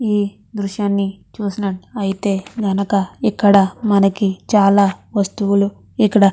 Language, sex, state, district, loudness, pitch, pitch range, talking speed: Telugu, female, Andhra Pradesh, Chittoor, -17 LUFS, 200 Hz, 195-205 Hz, 105 wpm